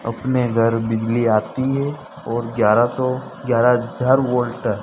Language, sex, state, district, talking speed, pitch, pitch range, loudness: Hindi, male, Madhya Pradesh, Dhar, 150 wpm, 120 Hz, 115-130 Hz, -19 LUFS